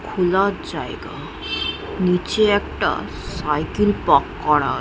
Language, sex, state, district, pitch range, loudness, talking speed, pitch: Bengali, female, West Bengal, Jhargram, 185-205 Hz, -20 LUFS, 100 wpm, 200 Hz